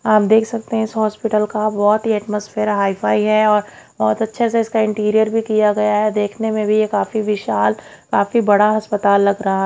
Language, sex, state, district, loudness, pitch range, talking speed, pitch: Hindi, female, Haryana, Jhajjar, -17 LUFS, 210-220 Hz, 210 wpm, 215 Hz